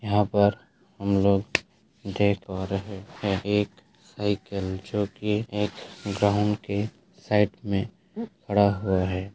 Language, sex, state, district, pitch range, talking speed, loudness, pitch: Hindi, male, Bihar, Madhepura, 100-105 Hz, 130 wpm, -26 LUFS, 100 Hz